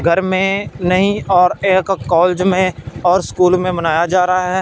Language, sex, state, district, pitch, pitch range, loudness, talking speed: Hindi, male, Punjab, Fazilka, 185 Hz, 175-185 Hz, -15 LUFS, 180 wpm